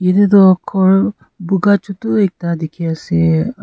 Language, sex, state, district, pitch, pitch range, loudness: Nagamese, female, Nagaland, Kohima, 185 Hz, 165-200 Hz, -14 LUFS